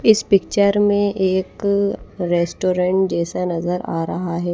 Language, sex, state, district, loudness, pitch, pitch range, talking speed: Hindi, female, Odisha, Malkangiri, -19 LUFS, 185 Hz, 175-200 Hz, 130 wpm